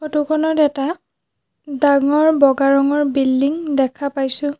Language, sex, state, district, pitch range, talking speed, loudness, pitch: Assamese, female, Assam, Sonitpur, 275-300 Hz, 105 wpm, -17 LUFS, 285 Hz